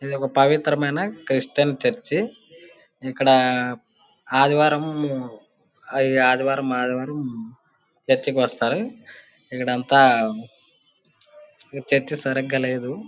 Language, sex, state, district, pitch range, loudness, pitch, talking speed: Telugu, male, Andhra Pradesh, Anantapur, 130-155 Hz, -21 LUFS, 135 Hz, 75 wpm